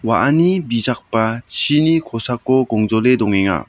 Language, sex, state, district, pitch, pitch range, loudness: Garo, male, Meghalaya, South Garo Hills, 120 Hz, 110-145 Hz, -16 LUFS